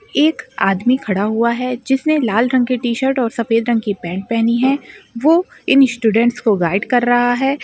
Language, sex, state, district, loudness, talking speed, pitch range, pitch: Hindi, female, Maharashtra, Chandrapur, -16 LUFS, 195 wpm, 230-265 Hz, 245 Hz